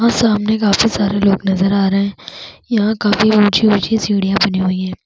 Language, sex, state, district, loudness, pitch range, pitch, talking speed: Hindi, female, Chhattisgarh, Bastar, -14 LUFS, 195-215 Hz, 205 Hz, 200 wpm